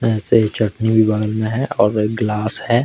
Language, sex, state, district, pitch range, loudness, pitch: Hindi, male, Jharkhand, Deoghar, 105-115 Hz, -17 LUFS, 110 Hz